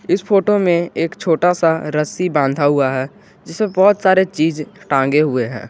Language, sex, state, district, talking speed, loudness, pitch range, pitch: Hindi, male, Jharkhand, Garhwa, 180 wpm, -16 LUFS, 145-190 Hz, 165 Hz